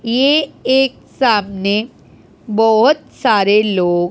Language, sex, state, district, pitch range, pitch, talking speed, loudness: Hindi, female, Punjab, Pathankot, 200-265 Hz, 220 Hz, 85 wpm, -14 LUFS